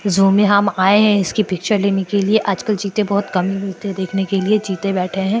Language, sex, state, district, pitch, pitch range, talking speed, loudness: Hindi, female, Maharashtra, Chandrapur, 200 Hz, 195-205 Hz, 255 wpm, -17 LUFS